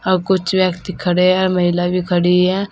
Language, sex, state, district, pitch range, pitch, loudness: Hindi, female, Uttar Pradesh, Saharanpur, 175-185 Hz, 180 Hz, -16 LUFS